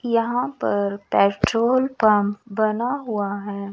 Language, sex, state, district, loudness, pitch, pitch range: Hindi, female, Chandigarh, Chandigarh, -21 LUFS, 215 Hz, 200-240 Hz